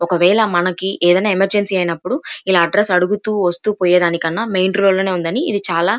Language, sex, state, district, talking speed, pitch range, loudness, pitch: Telugu, female, Andhra Pradesh, Chittoor, 170 wpm, 175-205 Hz, -15 LUFS, 185 Hz